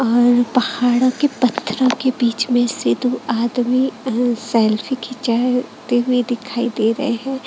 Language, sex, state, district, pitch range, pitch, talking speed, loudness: Hindi, female, Chhattisgarh, Raipur, 235-255 Hz, 245 Hz, 155 wpm, -18 LUFS